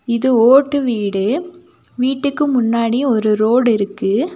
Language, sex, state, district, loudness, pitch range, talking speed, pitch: Tamil, female, Tamil Nadu, Nilgiris, -15 LUFS, 220-275 Hz, 110 wpm, 245 Hz